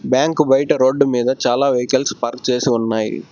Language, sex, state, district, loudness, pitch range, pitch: Telugu, male, Telangana, Hyderabad, -17 LUFS, 120-135 Hz, 125 Hz